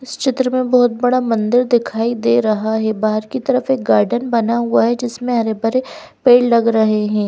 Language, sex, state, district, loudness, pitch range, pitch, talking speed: Hindi, female, Bihar, Katihar, -16 LUFS, 220-250 Hz, 235 Hz, 205 wpm